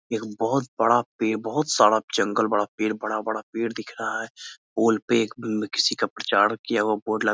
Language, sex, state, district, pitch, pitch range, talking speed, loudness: Hindi, male, Bihar, Muzaffarpur, 110 Hz, 110-115 Hz, 195 wpm, -24 LUFS